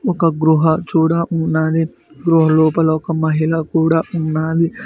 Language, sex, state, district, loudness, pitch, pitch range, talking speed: Telugu, male, Telangana, Mahabubabad, -16 LUFS, 160 Hz, 160-165 Hz, 125 wpm